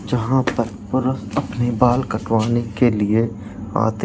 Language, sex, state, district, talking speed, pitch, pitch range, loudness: Hindi, male, Uttar Pradesh, Jalaun, 150 wpm, 115 Hz, 105-125 Hz, -20 LUFS